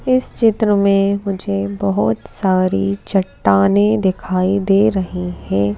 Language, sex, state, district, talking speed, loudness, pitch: Hindi, female, Madhya Pradesh, Bhopal, 115 wpm, -16 LUFS, 190 Hz